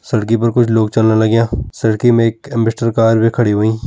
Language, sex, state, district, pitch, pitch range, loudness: Kumaoni, male, Uttarakhand, Tehri Garhwal, 115 Hz, 110-115 Hz, -14 LUFS